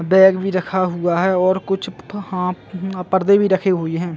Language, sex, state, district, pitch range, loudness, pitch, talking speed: Hindi, male, Chhattisgarh, Bastar, 180-190 Hz, -18 LUFS, 185 Hz, 200 wpm